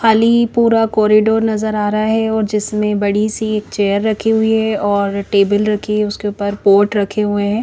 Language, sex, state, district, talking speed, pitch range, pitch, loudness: Hindi, female, Chandigarh, Chandigarh, 205 wpm, 205-220 Hz, 210 Hz, -15 LUFS